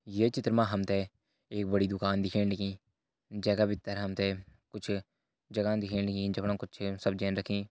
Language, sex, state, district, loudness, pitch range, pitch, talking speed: Hindi, male, Uttarakhand, Uttarkashi, -32 LUFS, 100-105 Hz, 100 Hz, 165 wpm